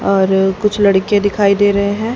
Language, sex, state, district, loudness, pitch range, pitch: Hindi, female, Haryana, Rohtak, -13 LUFS, 195-205 Hz, 200 Hz